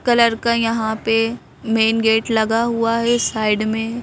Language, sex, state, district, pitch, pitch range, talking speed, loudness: Hindi, female, Madhya Pradesh, Bhopal, 225 Hz, 220-235 Hz, 165 wpm, -18 LUFS